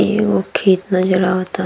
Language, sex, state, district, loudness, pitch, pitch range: Bhojpuri, female, Bihar, East Champaran, -16 LUFS, 185 Hz, 180-185 Hz